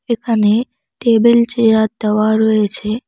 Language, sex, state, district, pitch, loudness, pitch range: Bengali, female, West Bengal, Cooch Behar, 225 Hz, -14 LUFS, 215-235 Hz